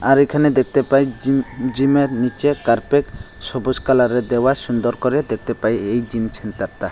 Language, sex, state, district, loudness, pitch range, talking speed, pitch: Bengali, male, Tripura, Unakoti, -18 LUFS, 115-135 Hz, 180 wpm, 130 Hz